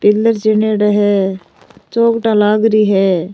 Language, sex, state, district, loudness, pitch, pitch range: Rajasthani, female, Rajasthan, Nagaur, -13 LUFS, 210 Hz, 200-220 Hz